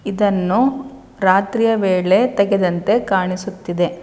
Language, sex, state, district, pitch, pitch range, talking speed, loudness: Kannada, female, Karnataka, Shimoga, 195 Hz, 185-225 Hz, 75 wpm, -17 LUFS